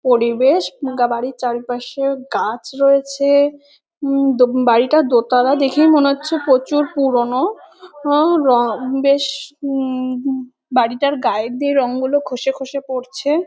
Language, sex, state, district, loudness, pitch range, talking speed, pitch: Bengali, female, West Bengal, North 24 Parganas, -17 LUFS, 250-285 Hz, 115 wpm, 270 Hz